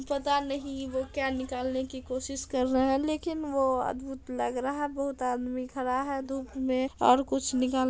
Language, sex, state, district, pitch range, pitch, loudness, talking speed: Hindi, female, Bihar, Darbhanga, 255-275 Hz, 265 Hz, -30 LUFS, 200 wpm